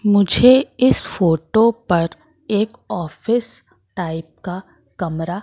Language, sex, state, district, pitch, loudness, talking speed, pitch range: Hindi, female, Madhya Pradesh, Katni, 200 Hz, -18 LUFS, 100 wpm, 170-235 Hz